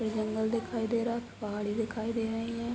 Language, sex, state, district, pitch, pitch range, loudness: Hindi, female, Uttar Pradesh, Ghazipur, 225 Hz, 220-230 Hz, -33 LUFS